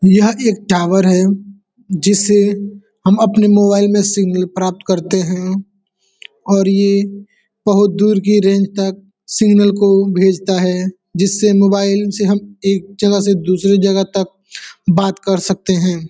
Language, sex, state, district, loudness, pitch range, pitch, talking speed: Hindi, male, Uttar Pradesh, Deoria, -14 LUFS, 190-205 Hz, 195 Hz, 135 wpm